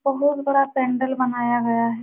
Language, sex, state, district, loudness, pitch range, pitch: Hindi, female, Uttar Pradesh, Jalaun, -21 LUFS, 240-275 Hz, 260 Hz